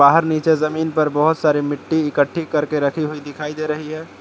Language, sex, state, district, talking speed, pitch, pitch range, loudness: Hindi, male, Jharkhand, Palamu, 200 wpm, 155 Hz, 150-160 Hz, -19 LUFS